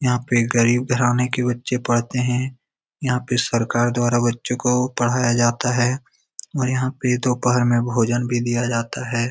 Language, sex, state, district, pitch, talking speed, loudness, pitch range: Hindi, male, Bihar, Lakhisarai, 125 Hz, 175 wpm, -20 LUFS, 120-125 Hz